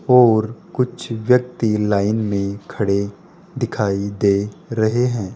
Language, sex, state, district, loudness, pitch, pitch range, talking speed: Hindi, male, Rajasthan, Jaipur, -19 LUFS, 110 Hz, 100-125 Hz, 110 wpm